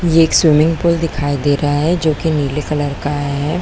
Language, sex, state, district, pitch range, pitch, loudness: Hindi, female, Chhattisgarh, Korba, 145-165 Hz, 150 Hz, -15 LUFS